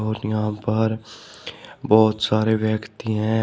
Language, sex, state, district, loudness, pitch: Hindi, male, Uttar Pradesh, Shamli, -21 LUFS, 110 Hz